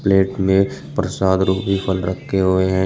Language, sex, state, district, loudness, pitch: Hindi, male, Uttar Pradesh, Shamli, -18 LUFS, 95 Hz